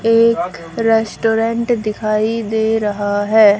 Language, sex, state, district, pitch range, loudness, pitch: Hindi, female, Haryana, Rohtak, 210-230 Hz, -16 LUFS, 220 Hz